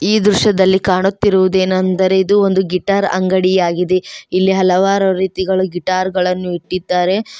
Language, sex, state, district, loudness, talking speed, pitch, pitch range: Kannada, female, Karnataka, Koppal, -14 LUFS, 115 wpm, 190 Hz, 185-190 Hz